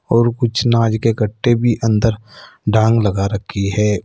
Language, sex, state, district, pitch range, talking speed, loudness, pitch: Hindi, male, Uttar Pradesh, Saharanpur, 105-115 Hz, 165 wpm, -16 LUFS, 110 Hz